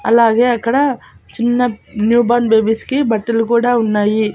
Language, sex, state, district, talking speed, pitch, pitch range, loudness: Telugu, female, Andhra Pradesh, Annamaya, 140 wpm, 235 Hz, 220-240 Hz, -14 LUFS